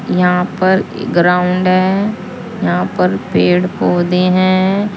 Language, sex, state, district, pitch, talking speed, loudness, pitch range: Hindi, female, Uttar Pradesh, Saharanpur, 185 Hz, 110 wpm, -14 LUFS, 175-190 Hz